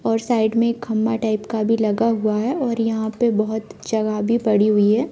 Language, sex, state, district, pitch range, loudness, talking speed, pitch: Hindi, female, Jharkhand, Jamtara, 215-230 Hz, -20 LUFS, 220 wpm, 220 Hz